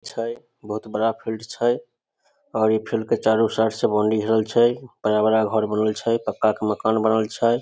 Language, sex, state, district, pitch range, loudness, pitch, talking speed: Maithili, male, Bihar, Samastipur, 110-115 Hz, -22 LUFS, 110 Hz, 195 wpm